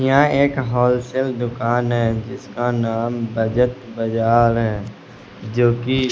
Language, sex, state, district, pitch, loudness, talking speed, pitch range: Hindi, male, Bihar, West Champaran, 120 Hz, -19 LUFS, 120 wpm, 115-125 Hz